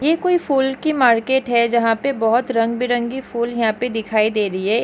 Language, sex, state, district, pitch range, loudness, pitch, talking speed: Hindi, female, Chhattisgarh, Rajnandgaon, 225-265 Hz, -18 LUFS, 235 Hz, 235 wpm